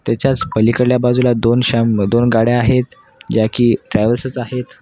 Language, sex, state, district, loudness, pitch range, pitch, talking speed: Marathi, male, Maharashtra, Washim, -15 LUFS, 115-125 Hz, 120 Hz, 150 wpm